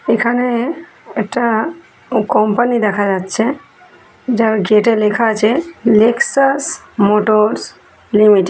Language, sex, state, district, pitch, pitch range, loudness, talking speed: Bengali, female, West Bengal, North 24 Parganas, 225 Hz, 210-245 Hz, -14 LUFS, 105 wpm